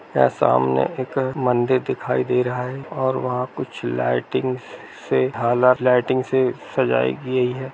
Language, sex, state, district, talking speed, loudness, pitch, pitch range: Hindi, male, Bihar, Gaya, 145 wpm, -21 LUFS, 125 Hz, 80-130 Hz